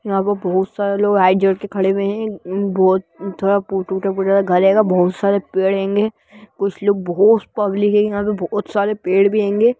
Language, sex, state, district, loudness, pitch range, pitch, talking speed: Hindi, female, Bihar, Gaya, -17 LUFS, 190-205 Hz, 200 Hz, 175 wpm